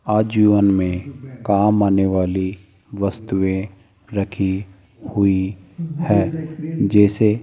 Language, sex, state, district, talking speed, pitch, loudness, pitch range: Hindi, male, Rajasthan, Jaipur, 90 wpm, 100 Hz, -19 LUFS, 95-110 Hz